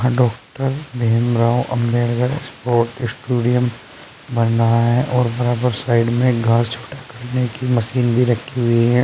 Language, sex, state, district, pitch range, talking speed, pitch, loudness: Hindi, male, Uttar Pradesh, Saharanpur, 115-125 Hz, 140 wpm, 120 Hz, -18 LUFS